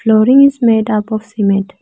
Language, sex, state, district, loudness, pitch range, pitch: English, female, Arunachal Pradesh, Lower Dibang Valley, -12 LUFS, 210-230 Hz, 220 Hz